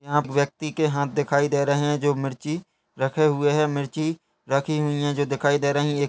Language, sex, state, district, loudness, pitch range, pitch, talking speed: Hindi, male, Chhattisgarh, Bastar, -24 LUFS, 140-150 Hz, 145 Hz, 235 wpm